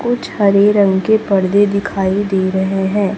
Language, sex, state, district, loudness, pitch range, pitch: Hindi, female, Chhattisgarh, Raipur, -14 LUFS, 190-205 Hz, 200 Hz